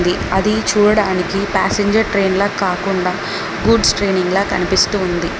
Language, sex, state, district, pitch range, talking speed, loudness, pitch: Telugu, female, Telangana, Mahabubabad, 185-205 Hz, 100 wpm, -15 LUFS, 195 Hz